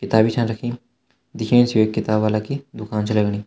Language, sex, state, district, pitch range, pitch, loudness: Hindi, male, Uttarakhand, Uttarkashi, 110-120 Hz, 110 Hz, -20 LUFS